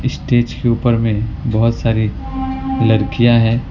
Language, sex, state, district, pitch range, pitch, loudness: Hindi, male, West Bengal, Alipurduar, 110-120 Hz, 115 Hz, -16 LUFS